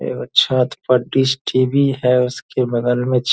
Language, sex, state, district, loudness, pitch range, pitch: Hindi, male, Bihar, Purnia, -17 LUFS, 125-130 Hz, 125 Hz